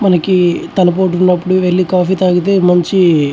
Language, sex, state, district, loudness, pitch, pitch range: Telugu, male, Andhra Pradesh, Chittoor, -12 LUFS, 180 Hz, 175-185 Hz